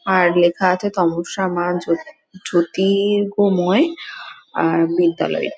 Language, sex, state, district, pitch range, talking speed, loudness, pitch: Bengali, female, West Bengal, Dakshin Dinajpur, 175-205 Hz, 120 wpm, -18 LUFS, 185 Hz